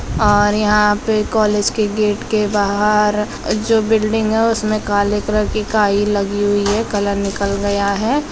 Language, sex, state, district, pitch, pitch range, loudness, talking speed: Hindi, female, Bihar, Gopalganj, 210 Hz, 205-215 Hz, -16 LUFS, 165 wpm